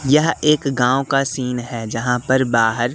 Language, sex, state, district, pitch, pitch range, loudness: Hindi, male, Madhya Pradesh, Katni, 130 Hz, 120-140 Hz, -18 LUFS